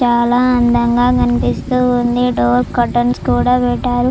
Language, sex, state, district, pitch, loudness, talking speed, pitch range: Telugu, female, Andhra Pradesh, Chittoor, 245 Hz, -14 LUFS, 100 wpm, 240-250 Hz